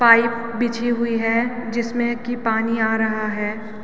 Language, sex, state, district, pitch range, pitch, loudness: Hindi, female, Uttarakhand, Tehri Garhwal, 220-235 Hz, 230 Hz, -21 LUFS